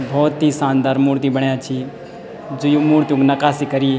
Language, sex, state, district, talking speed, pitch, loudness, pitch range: Garhwali, male, Uttarakhand, Tehri Garhwal, 180 wpm, 140 Hz, -17 LUFS, 135-145 Hz